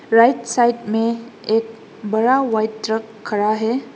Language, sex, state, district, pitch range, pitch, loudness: Hindi, female, Assam, Hailakandi, 220-235 Hz, 225 Hz, -19 LUFS